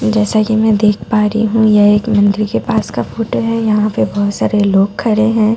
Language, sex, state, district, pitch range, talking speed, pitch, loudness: Hindi, female, Bihar, Katihar, 205-220 Hz, 235 wpm, 215 Hz, -13 LUFS